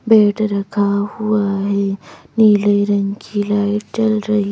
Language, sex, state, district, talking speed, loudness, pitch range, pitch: Hindi, female, Madhya Pradesh, Bhopal, 145 wpm, -17 LUFS, 200-210 Hz, 205 Hz